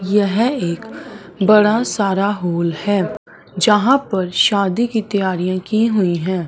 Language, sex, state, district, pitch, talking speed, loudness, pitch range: Hindi, male, Punjab, Fazilka, 200 Hz, 130 wpm, -17 LUFS, 185-215 Hz